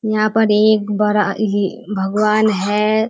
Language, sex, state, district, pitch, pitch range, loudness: Hindi, female, Bihar, Kishanganj, 210 Hz, 205-215 Hz, -16 LUFS